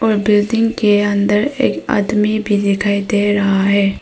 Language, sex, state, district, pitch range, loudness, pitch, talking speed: Hindi, female, Arunachal Pradesh, Papum Pare, 200-210 Hz, -15 LUFS, 205 Hz, 150 wpm